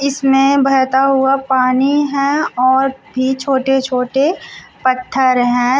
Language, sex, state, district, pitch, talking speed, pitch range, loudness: Hindi, female, Uttar Pradesh, Shamli, 265 Hz, 115 wpm, 255-275 Hz, -14 LUFS